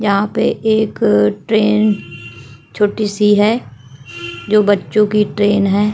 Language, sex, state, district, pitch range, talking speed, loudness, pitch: Hindi, female, Uttar Pradesh, Hamirpur, 135-215 Hz, 120 wpm, -14 LUFS, 205 Hz